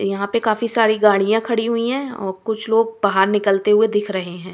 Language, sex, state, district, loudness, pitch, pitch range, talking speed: Hindi, female, Bihar, West Champaran, -18 LUFS, 215 Hz, 200-225 Hz, 225 wpm